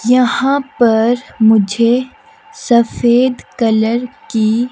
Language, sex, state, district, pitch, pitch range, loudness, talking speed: Hindi, female, Himachal Pradesh, Shimla, 240 Hz, 225-270 Hz, -13 LUFS, 75 wpm